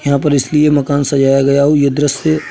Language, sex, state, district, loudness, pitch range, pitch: Hindi, male, Uttar Pradesh, Budaun, -12 LUFS, 140-150 Hz, 145 Hz